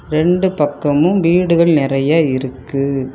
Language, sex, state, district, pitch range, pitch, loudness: Tamil, female, Tamil Nadu, Kanyakumari, 135-170 Hz, 150 Hz, -15 LUFS